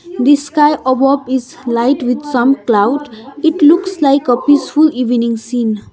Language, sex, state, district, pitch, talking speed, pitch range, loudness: English, female, Sikkim, Gangtok, 270 Hz, 150 wpm, 245-295 Hz, -13 LUFS